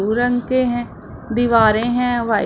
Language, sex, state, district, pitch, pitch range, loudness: Hindi, female, Punjab, Pathankot, 240 Hz, 225-245 Hz, -17 LUFS